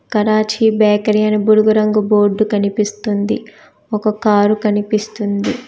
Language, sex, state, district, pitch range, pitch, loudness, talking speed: Telugu, female, Telangana, Hyderabad, 210-215 Hz, 215 Hz, -15 LUFS, 105 wpm